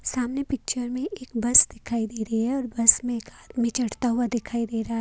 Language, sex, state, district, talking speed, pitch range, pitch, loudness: Hindi, female, Haryana, Jhajjar, 225 wpm, 230-250 Hz, 240 Hz, -23 LUFS